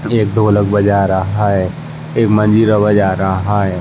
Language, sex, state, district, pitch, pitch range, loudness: Hindi, male, Uttar Pradesh, Jalaun, 105 Hz, 95-110 Hz, -13 LUFS